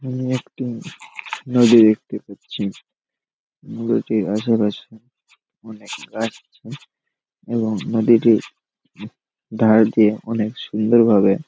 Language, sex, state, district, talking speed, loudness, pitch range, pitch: Bengali, male, West Bengal, Malda, 95 wpm, -18 LUFS, 110-120 Hz, 110 Hz